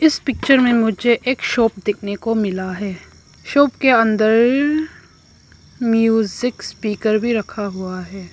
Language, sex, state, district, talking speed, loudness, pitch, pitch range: Hindi, female, Arunachal Pradesh, Papum Pare, 135 wpm, -18 LUFS, 225 Hz, 205-250 Hz